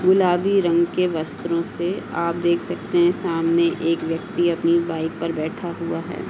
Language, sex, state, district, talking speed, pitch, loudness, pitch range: Hindi, female, Uttar Pradesh, Hamirpur, 170 wpm, 170 Hz, -21 LUFS, 165-175 Hz